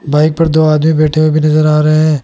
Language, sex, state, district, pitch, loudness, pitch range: Hindi, male, Rajasthan, Jaipur, 155 Hz, -10 LUFS, 150-155 Hz